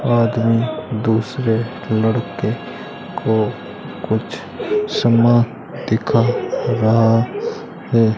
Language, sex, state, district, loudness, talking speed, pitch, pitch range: Hindi, male, Rajasthan, Bikaner, -18 LUFS, 65 wpm, 115 Hz, 110-120 Hz